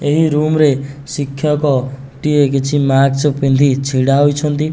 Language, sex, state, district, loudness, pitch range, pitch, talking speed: Odia, male, Odisha, Nuapada, -14 LUFS, 135-150 Hz, 140 Hz, 100 wpm